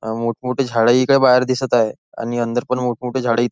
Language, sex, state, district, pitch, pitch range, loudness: Marathi, male, Maharashtra, Nagpur, 125 Hz, 115-130 Hz, -18 LUFS